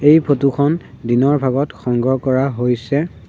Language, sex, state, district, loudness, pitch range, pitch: Assamese, male, Assam, Sonitpur, -17 LUFS, 125-145 Hz, 135 Hz